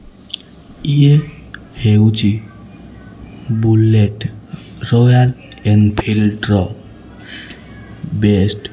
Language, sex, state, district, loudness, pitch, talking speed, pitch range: Odia, male, Odisha, Khordha, -14 LUFS, 105 Hz, 55 wpm, 105-115 Hz